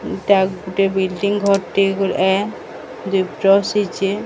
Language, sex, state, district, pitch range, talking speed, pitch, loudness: Odia, female, Odisha, Sambalpur, 190-200 Hz, 100 wpm, 195 Hz, -18 LUFS